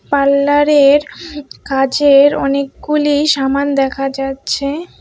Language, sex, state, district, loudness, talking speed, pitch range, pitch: Bengali, female, West Bengal, Alipurduar, -13 LUFS, 70 wpm, 275-295 Hz, 280 Hz